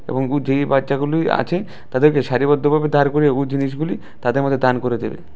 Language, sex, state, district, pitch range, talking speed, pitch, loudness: Bengali, male, Tripura, West Tripura, 135-145 Hz, 190 wpm, 140 Hz, -18 LUFS